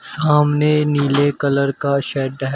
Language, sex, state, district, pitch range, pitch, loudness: Hindi, male, Uttar Pradesh, Shamli, 140-150 Hz, 140 Hz, -17 LUFS